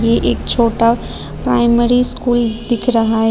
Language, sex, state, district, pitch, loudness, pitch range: Hindi, female, Tripura, Unakoti, 235 Hz, -14 LUFS, 230-240 Hz